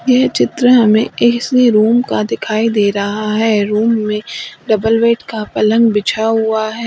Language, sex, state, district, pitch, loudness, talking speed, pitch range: Hindi, female, Uttar Pradesh, Lalitpur, 220 Hz, -13 LUFS, 165 wpm, 215-235 Hz